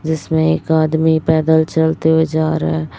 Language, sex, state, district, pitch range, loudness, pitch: Hindi, female, Chhattisgarh, Raipur, 155-160 Hz, -15 LUFS, 160 Hz